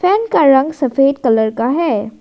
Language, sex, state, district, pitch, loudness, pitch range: Hindi, female, Arunachal Pradesh, Lower Dibang Valley, 275 Hz, -14 LUFS, 235-320 Hz